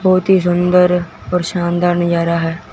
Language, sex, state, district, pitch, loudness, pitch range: Hindi, male, Punjab, Fazilka, 175 Hz, -15 LUFS, 170-180 Hz